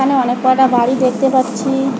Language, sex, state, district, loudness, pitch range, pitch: Bengali, female, West Bengal, Alipurduar, -14 LUFS, 250-265 Hz, 260 Hz